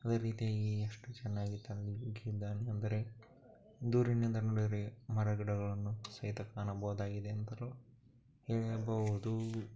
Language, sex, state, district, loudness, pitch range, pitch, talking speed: Kannada, male, Karnataka, Chamarajanagar, -39 LUFS, 105-115 Hz, 110 Hz, 50 wpm